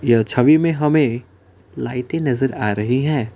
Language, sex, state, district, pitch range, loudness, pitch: Hindi, male, Assam, Kamrup Metropolitan, 105-145 Hz, -18 LUFS, 125 Hz